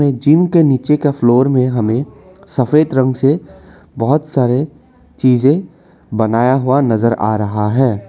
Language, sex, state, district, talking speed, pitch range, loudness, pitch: Hindi, male, Assam, Kamrup Metropolitan, 140 wpm, 120-150 Hz, -14 LUFS, 130 Hz